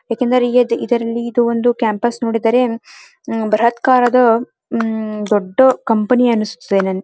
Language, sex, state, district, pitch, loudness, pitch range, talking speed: Kannada, female, Karnataka, Dharwad, 235 Hz, -15 LUFS, 220-245 Hz, 100 wpm